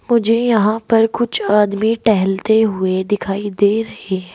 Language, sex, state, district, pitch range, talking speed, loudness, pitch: Hindi, female, Uttar Pradesh, Saharanpur, 200-225 Hz, 150 wpm, -16 LUFS, 210 Hz